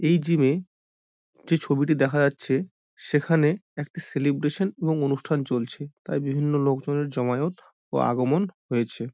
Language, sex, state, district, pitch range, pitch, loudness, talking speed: Bengali, male, West Bengal, Dakshin Dinajpur, 135-160 Hz, 145 Hz, -25 LUFS, 120 wpm